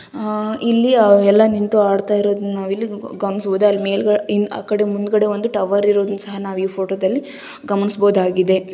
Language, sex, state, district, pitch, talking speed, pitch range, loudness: Kannada, female, Karnataka, Gulbarga, 205 Hz, 130 wpm, 200-210 Hz, -17 LUFS